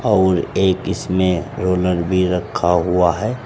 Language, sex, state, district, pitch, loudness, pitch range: Hindi, male, Uttar Pradesh, Saharanpur, 90 Hz, -18 LUFS, 90-95 Hz